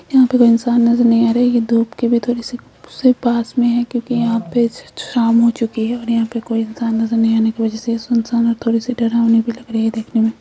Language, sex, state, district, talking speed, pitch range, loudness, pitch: Hindi, female, Uttar Pradesh, Hamirpur, 275 wpm, 230-240 Hz, -16 LUFS, 235 Hz